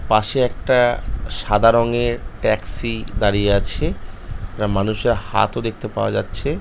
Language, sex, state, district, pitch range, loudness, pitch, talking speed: Bengali, male, West Bengal, North 24 Parganas, 100-115 Hz, -19 LUFS, 110 Hz, 120 wpm